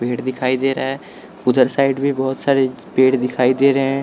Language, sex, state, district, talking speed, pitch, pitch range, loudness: Hindi, male, Bihar, West Champaran, 220 wpm, 130 Hz, 130-135 Hz, -17 LUFS